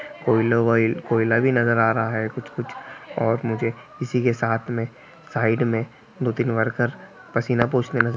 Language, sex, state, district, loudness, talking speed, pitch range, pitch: Hindi, male, Bihar, Gopalganj, -22 LUFS, 170 wpm, 115-125 Hz, 115 Hz